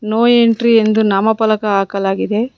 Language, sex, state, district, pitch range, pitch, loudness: Kannada, female, Karnataka, Bangalore, 205-230 Hz, 220 Hz, -13 LUFS